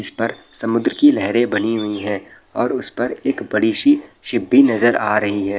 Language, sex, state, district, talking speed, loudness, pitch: Hindi, male, Bihar, Araria, 215 wpm, -17 LUFS, 110 Hz